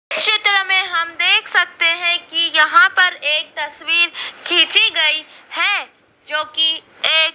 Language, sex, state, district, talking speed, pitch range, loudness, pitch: Hindi, female, Madhya Pradesh, Dhar, 145 wpm, 315-370 Hz, -14 LUFS, 335 Hz